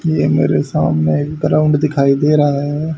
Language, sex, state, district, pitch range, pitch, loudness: Hindi, male, Haryana, Charkhi Dadri, 140-155 Hz, 150 Hz, -14 LUFS